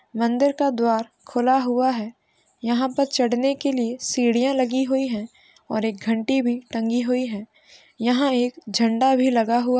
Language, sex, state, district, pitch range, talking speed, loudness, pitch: Hindi, female, Uttar Pradesh, Hamirpur, 230-265 Hz, 185 wpm, -22 LUFS, 250 Hz